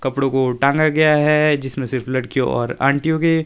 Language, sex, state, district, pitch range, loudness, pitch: Hindi, male, Himachal Pradesh, Shimla, 130-150 Hz, -17 LUFS, 140 Hz